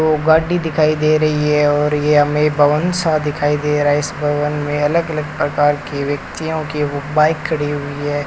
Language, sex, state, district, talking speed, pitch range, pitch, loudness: Hindi, male, Rajasthan, Bikaner, 210 wpm, 145-155 Hz, 150 Hz, -16 LUFS